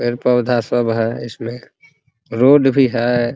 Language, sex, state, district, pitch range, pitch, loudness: Hindi, male, Bihar, Muzaffarpur, 120-135 Hz, 120 Hz, -16 LUFS